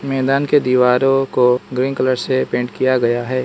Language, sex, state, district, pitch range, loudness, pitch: Hindi, male, Arunachal Pradesh, Lower Dibang Valley, 125-135 Hz, -16 LUFS, 130 Hz